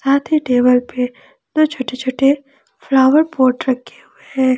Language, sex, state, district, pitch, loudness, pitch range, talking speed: Hindi, female, Jharkhand, Ranchi, 265 Hz, -16 LUFS, 255-275 Hz, 145 wpm